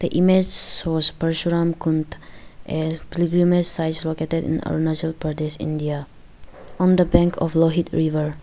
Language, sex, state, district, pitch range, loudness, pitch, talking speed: English, female, Arunachal Pradesh, Lower Dibang Valley, 155-170 Hz, -21 LUFS, 160 Hz, 135 wpm